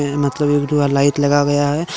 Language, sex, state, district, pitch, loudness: Hindi, male, Jharkhand, Deoghar, 145 Hz, -16 LUFS